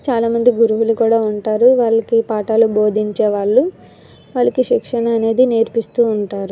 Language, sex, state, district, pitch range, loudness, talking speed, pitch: Telugu, female, Andhra Pradesh, Visakhapatnam, 215-235 Hz, -15 LUFS, 130 wpm, 225 Hz